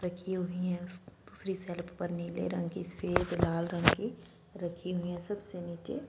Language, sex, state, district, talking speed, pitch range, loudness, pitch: Hindi, female, Punjab, Fazilka, 195 wpm, 175-185 Hz, -35 LUFS, 180 Hz